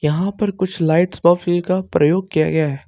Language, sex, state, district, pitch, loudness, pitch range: Hindi, male, Jharkhand, Ranchi, 175 Hz, -17 LUFS, 160-185 Hz